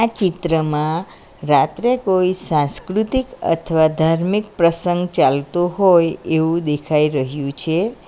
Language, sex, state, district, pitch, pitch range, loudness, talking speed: Gujarati, female, Gujarat, Valsad, 170 Hz, 155-190 Hz, -18 LUFS, 95 wpm